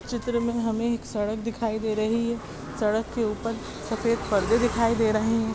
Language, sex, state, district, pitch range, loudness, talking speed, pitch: Hindi, female, Uttar Pradesh, Budaun, 220-230 Hz, -26 LUFS, 195 wpm, 225 Hz